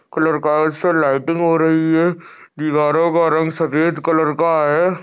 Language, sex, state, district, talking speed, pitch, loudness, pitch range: Hindi, male, Maharashtra, Aurangabad, 145 wpm, 160 Hz, -16 LUFS, 155-165 Hz